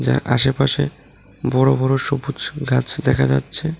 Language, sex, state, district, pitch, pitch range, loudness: Bengali, male, Tripura, West Tripura, 135 Hz, 130-145 Hz, -18 LUFS